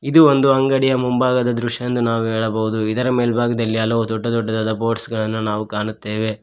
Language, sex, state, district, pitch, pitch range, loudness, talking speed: Kannada, male, Karnataka, Koppal, 115 Hz, 110-125 Hz, -18 LUFS, 160 wpm